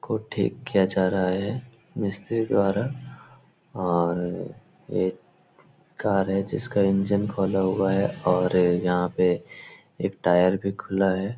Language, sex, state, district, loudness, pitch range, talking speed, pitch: Hindi, male, Uttar Pradesh, Etah, -25 LUFS, 90-100 Hz, 130 wpm, 95 Hz